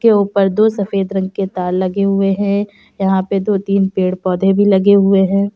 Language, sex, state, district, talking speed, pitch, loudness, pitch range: Hindi, female, Uttar Pradesh, Jyotiba Phule Nagar, 215 wpm, 195 Hz, -15 LUFS, 190-200 Hz